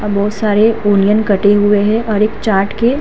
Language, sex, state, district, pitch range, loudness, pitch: Hindi, female, Uttar Pradesh, Hamirpur, 205-215 Hz, -13 LUFS, 210 Hz